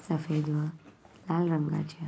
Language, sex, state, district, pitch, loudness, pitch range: Marathi, female, Maharashtra, Sindhudurg, 155 Hz, -31 LUFS, 150-165 Hz